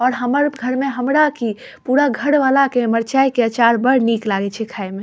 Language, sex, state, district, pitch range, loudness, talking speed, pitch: Maithili, female, Bihar, Saharsa, 230-270 Hz, -17 LUFS, 240 wpm, 250 Hz